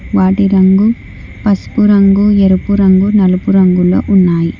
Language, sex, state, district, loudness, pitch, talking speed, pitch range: Telugu, female, Telangana, Hyderabad, -10 LUFS, 195 Hz, 115 wpm, 190-205 Hz